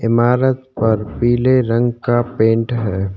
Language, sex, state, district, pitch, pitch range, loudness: Hindi, male, Uttarakhand, Tehri Garhwal, 120 Hz, 110-120 Hz, -16 LUFS